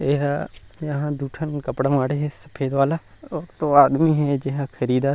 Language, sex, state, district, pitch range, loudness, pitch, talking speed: Chhattisgarhi, male, Chhattisgarh, Rajnandgaon, 135-150 Hz, -22 LUFS, 145 Hz, 200 wpm